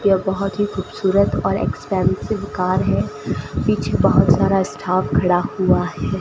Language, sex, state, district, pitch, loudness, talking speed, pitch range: Hindi, female, Rajasthan, Bikaner, 190 Hz, -19 LUFS, 145 wpm, 185-200 Hz